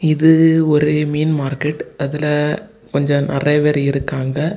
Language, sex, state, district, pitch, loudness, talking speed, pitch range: Tamil, male, Tamil Nadu, Kanyakumari, 150 Hz, -16 LUFS, 120 wpm, 140-155 Hz